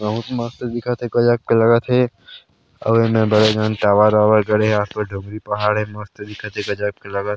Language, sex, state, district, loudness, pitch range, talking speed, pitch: Chhattisgarhi, male, Chhattisgarh, Sarguja, -18 LUFS, 105-115 Hz, 220 wpm, 105 Hz